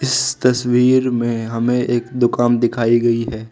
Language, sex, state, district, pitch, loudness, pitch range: Hindi, male, Arunachal Pradesh, Lower Dibang Valley, 120 Hz, -16 LUFS, 115-125 Hz